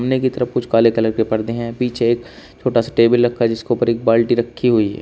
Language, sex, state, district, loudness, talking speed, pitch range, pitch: Hindi, male, Uttar Pradesh, Shamli, -17 LUFS, 260 wpm, 115-120 Hz, 120 Hz